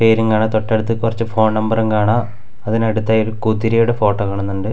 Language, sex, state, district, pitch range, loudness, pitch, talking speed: Malayalam, male, Kerala, Kasaragod, 105-115 Hz, -17 LUFS, 110 Hz, 150 wpm